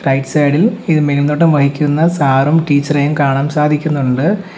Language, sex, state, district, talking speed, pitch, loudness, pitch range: Malayalam, male, Kerala, Kollam, 130 wpm, 150 Hz, -13 LUFS, 140-160 Hz